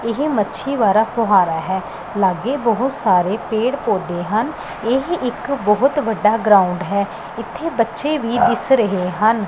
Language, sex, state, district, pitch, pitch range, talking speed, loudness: Punjabi, female, Punjab, Pathankot, 225 Hz, 200-260 Hz, 145 wpm, -18 LUFS